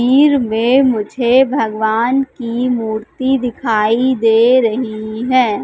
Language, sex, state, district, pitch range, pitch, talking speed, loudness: Hindi, female, Madhya Pradesh, Katni, 220-260 Hz, 240 Hz, 95 wpm, -14 LUFS